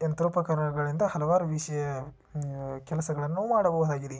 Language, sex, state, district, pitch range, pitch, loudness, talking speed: Kannada, male, Karnataka, Shimoga, 145-170 Hz, 155 Hz, -29 LUFS, 85 wpm